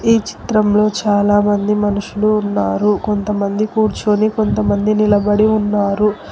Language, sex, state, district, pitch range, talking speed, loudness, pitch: Telugu, female, Telangana, Hyderabad, 205-215 Hz, 95 wpm, -15 LUFS, 210 Hz